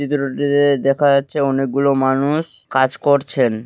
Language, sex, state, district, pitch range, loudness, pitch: Bengali, male, West Bengal, Malda, 135-145 Hz, -17 LUFS, 140 Hz